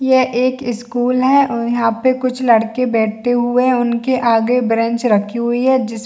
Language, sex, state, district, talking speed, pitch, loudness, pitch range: Hindi, female, Chhattisgarh, Bilaspur, 190 wpm, 245 Hz, -15 LUFS, 230-255 Hz